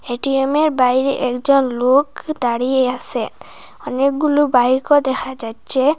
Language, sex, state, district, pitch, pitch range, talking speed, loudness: Bengali, female, Assam, Hailakandi, 265 Hz, 250-285 Hz, 100 wpm, -17 LUFS